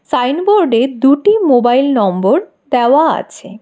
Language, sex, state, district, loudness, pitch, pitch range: Bengali, female, West Bengal, Alipurduar, -12 LUFS, 270 Hz, 240-315 Hz